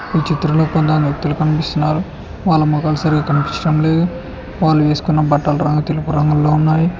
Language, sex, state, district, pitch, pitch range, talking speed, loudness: Telugu, male, Telangana, Hyderabad, 155 Hz, 150-160 Hz, 145 wpm, -16 LUFS